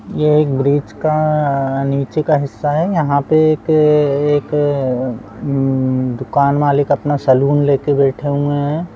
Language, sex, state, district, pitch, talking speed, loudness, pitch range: Hindi, male, Bihar, Purnia, 145 Hz, 140 wpm, -15 LUFS, 135-150 Hz